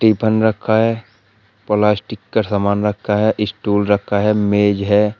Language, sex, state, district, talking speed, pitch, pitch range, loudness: Hindi, male, Uttar Pradesh, Shamli, 150 wpm, 105 Hz, 105-110 Hz, -17 LUFS